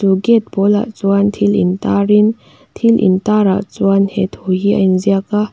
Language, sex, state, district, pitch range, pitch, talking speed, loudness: Mizo, female, Mizoram, Aizawl, 195-210 Hz, 200 Hz, 195 wpm, -14 LUFS